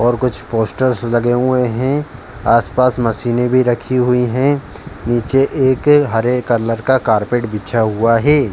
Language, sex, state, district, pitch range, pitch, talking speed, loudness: Hindi, male, Uttar Pradesh, Jalaun, 115-130 Hz, 120 Hz, 150 wpm, -15 LUFS